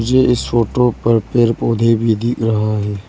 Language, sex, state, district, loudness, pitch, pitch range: Hindi, female, Arunachal Pradesh, Lower Dibang Valley, -15 LUFS, 115 Hz, 110-120 Hz